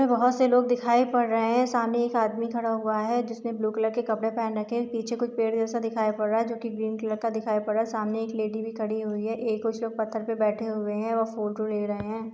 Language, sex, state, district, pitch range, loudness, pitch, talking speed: Hindi, female, Bihar, Gaya, 220-235 Hz, -27 LUFS, 225 Hz, 280 wpm